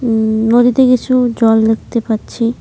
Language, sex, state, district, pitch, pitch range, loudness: Bengali, female, West Bengal, Cooch Behar, 230 Hz, 225-245 Hz, -13 LUFS